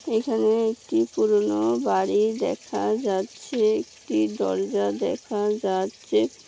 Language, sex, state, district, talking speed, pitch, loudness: Bengali, female, West Bengal, Malda, 95 wpm, 190 Hz, -24 LUFS